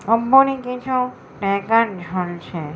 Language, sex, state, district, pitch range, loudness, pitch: Bengali, female, West Bengal, Jhargram, 180-250 Hz, -19 LUFS, 225 Hz